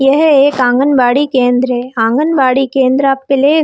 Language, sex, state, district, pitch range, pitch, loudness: Hindi, female, Chhattisgarh, Bilaspur, 255-280 Hz, 270 Hz, -11 LUFS